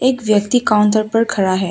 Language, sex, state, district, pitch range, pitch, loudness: Hindi, female, Tripura, West Tripura, 205-230 Hz, 215 Hz, -15 LUFS